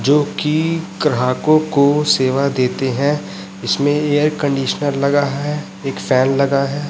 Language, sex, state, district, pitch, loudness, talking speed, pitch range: Hindi, male, Chhattisgarh, Raipur, 140 Hz, -17 LUFS, 140 wpm, 135-150 Hz